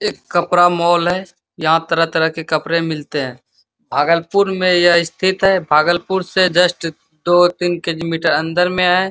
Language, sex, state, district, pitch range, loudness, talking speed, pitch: Hindi, male, Bihar, Bhagalpur, 160-180 Hz, -15 LUFS, 190 wpm, 175 Hz